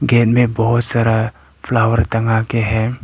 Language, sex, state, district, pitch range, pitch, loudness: Hindi, male, Arunachal Pradesh, Papum Pare, 110-120 Hz, 115 Hz, -16 LUFS